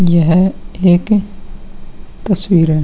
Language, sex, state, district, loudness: Hindi, male, Uttar Pradesh, Muzaffarnagar, -13 LUFS